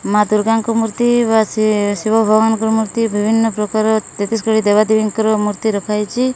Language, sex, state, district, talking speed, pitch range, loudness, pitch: Odia, female, Odisha, Malkangiri, 150 wpm, 210-225 Hz, -15 LUFS, 220 Hz